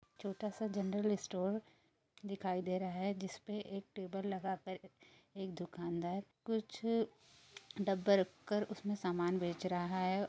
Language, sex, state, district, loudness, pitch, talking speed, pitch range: Hindi, female, Uttar Pradesh, Jyotiba Phule Nagar, -40 LUFS, 190 Hz, 140 wpm, 180-205 Hz